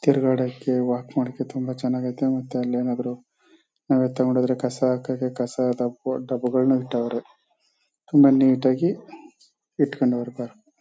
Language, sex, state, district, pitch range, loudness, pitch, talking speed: Kannada, male, Karnataka, Chamarajanagar, 125-130 Hz, -23 LUFS, 130 Hz, 105 wpm